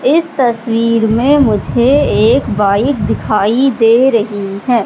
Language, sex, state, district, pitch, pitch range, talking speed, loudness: Hindi, female, Madhya Pradesh, Katni, 230 Hz, 215-260 Hz, 125 wpm, -12 LUFS